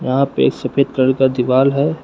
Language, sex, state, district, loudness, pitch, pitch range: Hindi, male, Uttar Pradesh, Lucknow, -15 LUFS, 135 Hz, 130-140 Hz